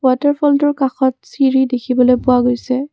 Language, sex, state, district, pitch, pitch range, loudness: Assamese, female, Assam, Kamrup Metropolitan, 260 Hz, 250-280 Hz, -15 LUFS